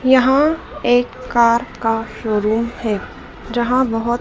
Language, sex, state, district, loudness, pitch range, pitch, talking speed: Hindi, female, Madhya Pradesh, Dhar, -17 LUFS, 225-250 Hz, 240 Hz, 115 wpm